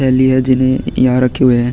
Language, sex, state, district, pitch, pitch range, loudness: Hindi, male, Chhattisgarh, Sukma, 130 Hz, 125-130 Hz, -12 LUFS